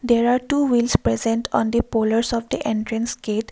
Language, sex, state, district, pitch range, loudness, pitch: English, female, Assam, Kamrup Metropolitan, 220-235 Hz, -21 LUFS, 230 Hz